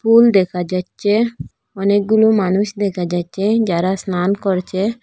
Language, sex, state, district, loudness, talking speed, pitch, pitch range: Bengali, female, Assam, Hailakandi, -17 LUFS, 120 wpm, 200 Hz, 185-215 Hz